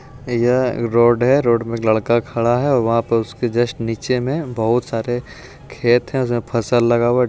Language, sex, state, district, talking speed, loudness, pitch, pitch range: Hindi, male, Bihar, Jamui, 195 wpm, -18 LUFS, 120 Hz, 115-125 Hz